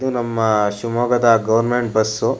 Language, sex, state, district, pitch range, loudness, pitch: Kannada, male, Karnataka, Shimoga, 110-120 Hz, -17 LUFS, 115 Hz